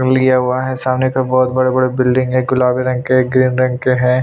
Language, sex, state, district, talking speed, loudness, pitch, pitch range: Hindi, male, Chhattisgarh, Sukma, 225 wpm, -14 LUFS, 130 Hz, 125-130 Hz